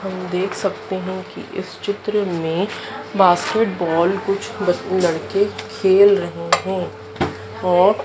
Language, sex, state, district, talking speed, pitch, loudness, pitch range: Hindi, female, Madhya Pradesh, Dhar, 120 wpm, 190 Hz, -19 LUFS, 175-200 Hz